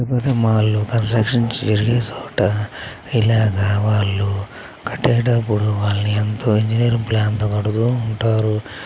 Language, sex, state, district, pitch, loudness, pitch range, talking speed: Telugu, male, Andhra Pradesh, Chittoor, 110 Hz, -18 LUFS, 105-115 Hz, 115 wpm